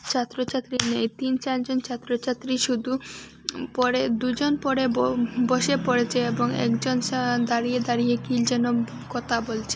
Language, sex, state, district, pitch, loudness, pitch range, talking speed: Bengali, female, Assam, Hailakandi, 245 Hz, -25 LUFS, 240-255 Hz, 130 wpm